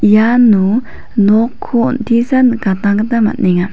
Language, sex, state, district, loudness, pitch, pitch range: Garo, female, Meghalaya, West Garo Hills, -12 LUFS, 225 Hz, 205-240 Hz